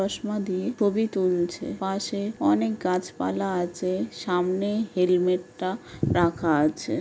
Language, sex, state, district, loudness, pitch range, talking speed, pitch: Bengali, female, West Bengal, Jhargram, -26 LUFS, 180-205 Hz, 120 wpm, 185 Hz